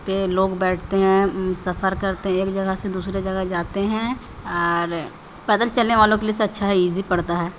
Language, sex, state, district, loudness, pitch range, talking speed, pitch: Maithili, female, Bihar, Samastipur, -21 LUFS, 185-195 Hz, 215 wpm, 190 Hz